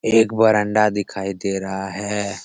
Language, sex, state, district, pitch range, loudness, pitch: Hindi, male, Bihar, Jamui, 95-105 Hz, -20 LUFS, 105 Hz